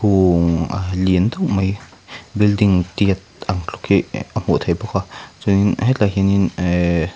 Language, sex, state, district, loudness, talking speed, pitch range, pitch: Mizo, male, Mizoram, Aizawl, -18 LUFS, 160 wpm, 90-100 Hz, 95 Hz